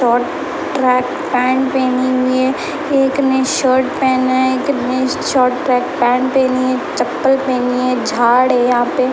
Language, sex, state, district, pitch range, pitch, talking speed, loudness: Hindi, female, Uttar Pradesh, Etah, 250-265 Hz, 255 Hz, 150 wpm, -15 LUFS